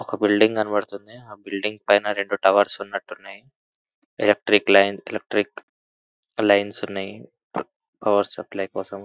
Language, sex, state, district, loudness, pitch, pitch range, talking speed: Telugu, male, Andhra Pradesh, Anantapur, -22 LUFS, 100 Hz, 100-105 Hz, 115 wpm